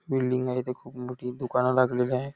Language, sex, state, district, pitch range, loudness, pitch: Marathi, male, Maharashtra, Nagpur, 125-130 Hz, -27 LUFS, 125 Hz